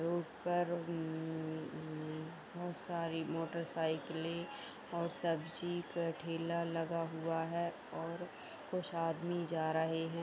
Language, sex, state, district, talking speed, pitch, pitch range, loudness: Hindi, female, Bihar, Madhepura, 125 wpm, 165 Hz, 160-170 Hz, -40 LUFS